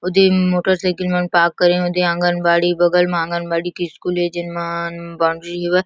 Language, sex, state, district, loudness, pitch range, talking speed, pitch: Chhattisgarhi, female, Chhattisgarh, Kabirdham, -17 LUFS, 170-180 Hz, 195 wpm, 175 Hz